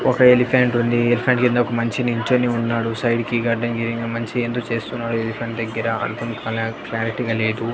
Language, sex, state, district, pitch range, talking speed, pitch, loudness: Telugu, male, Andhra Pradesh, Annamaya, 115-120 Hz, 170 wpm, 115 Hz, -20 LUFS